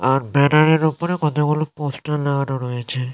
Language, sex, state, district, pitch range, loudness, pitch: Bengali, male, West Bengal, North 24 Parganas, 135-155 Hz, -19 LUFS, 145 Hz